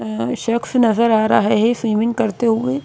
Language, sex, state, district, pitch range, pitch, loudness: Hindi, female, Madhya Pradesh, Bhopal, 215-235 Hz, 225 Hz, -17 LUFS